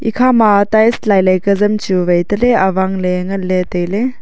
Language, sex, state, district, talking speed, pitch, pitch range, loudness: Wancho, female, Arunachal Pradesh, Longding, 170 wpm, 200 Hz, 185-220 Hz, -13 LUFS